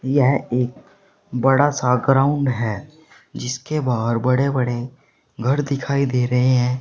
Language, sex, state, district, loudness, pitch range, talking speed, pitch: Hindi, male, Uttar Pradesh, Saharanpur, -20 LUFS, 125-140 Hz, 130 wpm, 130 Hz